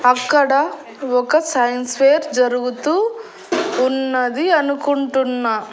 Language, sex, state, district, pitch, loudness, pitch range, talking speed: Telugu, female, Andhra Pradesh, Annamaya, 265 Hz, -17 LUFS, 250-295 Hz, 75 wpm